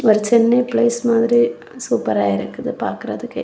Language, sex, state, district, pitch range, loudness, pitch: Tamil, female, Tamil Nadu, Kanyakumari, 160-240 Hz, -18 LUFS, 230 Hz